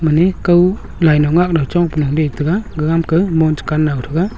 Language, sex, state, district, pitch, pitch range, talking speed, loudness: Wancho, male, Arunachal Pradesh, Longding, 160 Hz, 155-175 Hz, 165 wpm, -15 LUFS